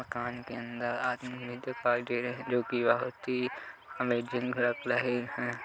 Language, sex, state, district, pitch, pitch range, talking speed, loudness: Hindi, male, Chhattisgarh, Kabirdham, 120 Hz, 120-125 Hz, 180 wpm, -32 LUFS